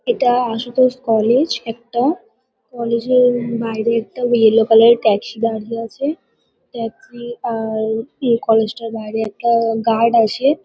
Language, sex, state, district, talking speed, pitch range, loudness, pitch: Bengali, female, West Bengal, Kolkata, 130 wpm, 225-245 Hz, -17 LUFS, 230 Hz